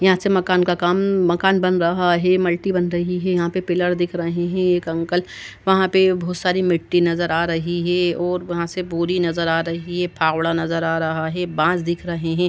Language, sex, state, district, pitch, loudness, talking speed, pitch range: Hindi, male, Uttar Pradesh, Jalaun, 175 Hz, -20 LUFS, 225 wpm, 170-180 Hz